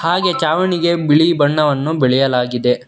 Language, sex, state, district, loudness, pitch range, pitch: Kannada, male, Karnataka, Bangalore, -15 LUFS, 130-170 Hz, 150 Hz